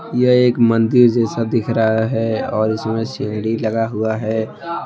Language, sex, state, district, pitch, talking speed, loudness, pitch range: Hindi, male, Jharkhand, Deoghar, 115 Hz, 160 wpm, -17 LUFS, 110-120 Hz